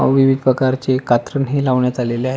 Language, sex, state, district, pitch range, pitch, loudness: Marathi, male, Maharashtra, Pune, 125-135 Hz, 130 Hz, -16 LUFS